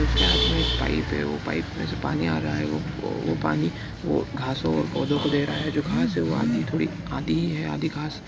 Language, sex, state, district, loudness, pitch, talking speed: Hindi, male, Bihar, East Champaran, -25 LUFS, 80 Hz, 240 wpm